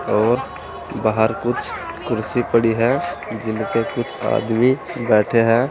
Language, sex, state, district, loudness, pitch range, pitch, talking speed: Hindi, male, Uttar Pradesh, Saharanpur, -19 LUFS, 110-120 Hz, 115 Hz, 115 wpm